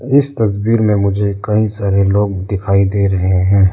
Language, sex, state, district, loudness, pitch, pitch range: Hindi, male, Arunachal Pradesh, Lower Dibang Valley, -14 LUFS, 100 Hz, 100-105 Hz